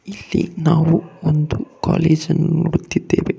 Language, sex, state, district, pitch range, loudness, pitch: Kannada, male, Karnataka, Bangalore, 160-180 Hz, -18 LUFS, 165 Hz